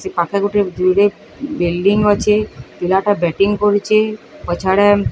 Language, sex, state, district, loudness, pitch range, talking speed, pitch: Odia, female, Odisha, Sambalpur, -15 LUFS, 185-210 Hz, 130 wpm, 205 Hz